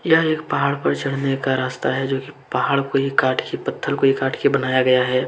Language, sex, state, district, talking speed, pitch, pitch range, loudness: Hindi, male, Jharkhand, Deoghar, 260 wpm, 135 Hz, 130-140 Hz, -20 LUFS